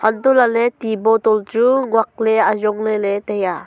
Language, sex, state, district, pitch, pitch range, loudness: Wancho, female, Arunachal Pradesh, Longding, 220 Hz, 215-230 Hz, -16 LUFS